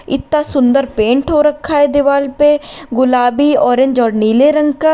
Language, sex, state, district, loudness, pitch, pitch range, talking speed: Hindi, female, Uttar Pradesh, Lalitpur, -12 LUFS, 280 Hz, 255-295 Hz, 170 wpm